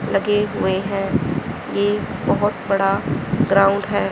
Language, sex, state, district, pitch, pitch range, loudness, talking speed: Hindi, female, Haryana, Rohtak, 200 Hz, 195-205 Hz, -20 LUFS, 115 wpm